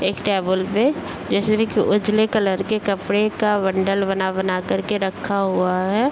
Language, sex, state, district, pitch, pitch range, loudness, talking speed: Hindi, male, Bihar, Bhagalpur, 200 Hz, 190-215 Hz, -20 LUFS, 145 wpm